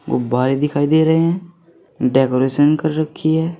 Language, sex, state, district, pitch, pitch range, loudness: Hindi, male, Uttar Pradesh, Saharanpur, 155 Hz, 135-160 Hz, -17 LUFS